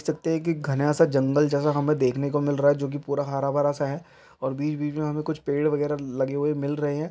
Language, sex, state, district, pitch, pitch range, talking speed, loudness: Maithili, male, Bihar, Samastipur, 145 Hz, 140-150 Hz, 255 wpm, -25 LUFS